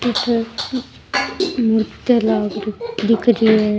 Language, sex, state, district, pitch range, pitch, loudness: Rajasthani, female, Rajasthan, Churu, 215-245 Hz, 230 Hz, -18 LUFS